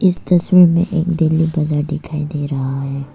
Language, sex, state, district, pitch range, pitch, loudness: Hindi, female, Arunachal Pradesh, Papum Pare, 145-170 Hz, 155 Hz, -16 LUFS